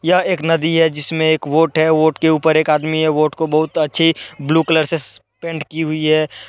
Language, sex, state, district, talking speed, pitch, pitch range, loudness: Hindi, male, Jharkhand, Deoghar, 220 wpm, 160 Hz, 155-165 Hz, -16 LUFS